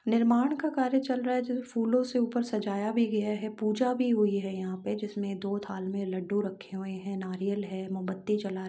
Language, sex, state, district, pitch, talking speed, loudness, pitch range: Hindi, female, Uttar Pradesh, Jalaun, 210 Hz, 225 wpm, -30 LUFS, 195-240 Hz